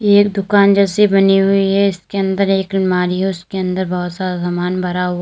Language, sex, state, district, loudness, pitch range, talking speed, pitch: Hindi, female, Uttar Pradesh, Lalitpur, -15 LUFS, 180-200 Hz, 205 wpm, 190 Hz